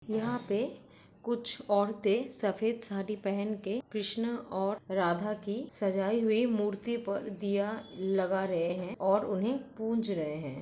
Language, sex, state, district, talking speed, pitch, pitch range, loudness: Hindi, female, Uttar Pradesh, Jalaun, 140 wpm, 210 Hz, 195-230 Hz, -32 LUFS